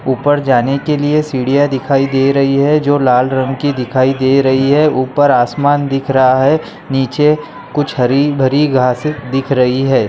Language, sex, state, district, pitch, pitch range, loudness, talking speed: Hindi, male, Bihar, Darbhanga, 135 Hz, 130-145 Hz, -13 LUFS, 185 wpm